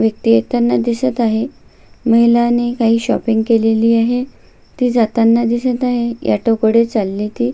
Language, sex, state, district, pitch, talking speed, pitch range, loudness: Marathi, female, Maharashtra, Sindhudurg, 230 Hz, 135 wpm, 225-240 Hz, -15 LUFS